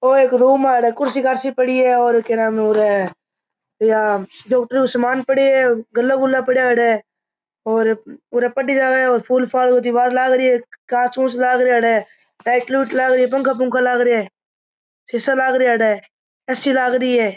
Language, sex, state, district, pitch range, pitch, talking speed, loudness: Marwari, male, Rajasthan, Churu, 235-260 Hz, 250 Hz, 175 wpm, -16 LUFS